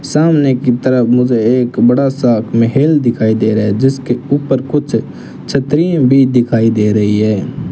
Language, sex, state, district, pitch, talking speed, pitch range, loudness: Hindi, male, Rajasthan, Bikaner, 125 Hz, 165 wpm, 110-135 Hz, -12 LUFS